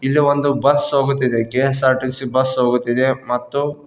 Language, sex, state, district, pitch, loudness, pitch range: Kannada, male, Karnataka, Koppal, 130 Hz, -17 LUFS, 130-140 Hz